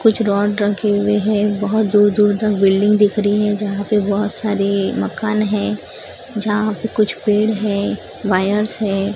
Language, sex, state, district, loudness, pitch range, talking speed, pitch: Hindi, female, Maharashtra, Gondia, -17 LUFS, 205-210 Hz, 170 wpm, 210 Hz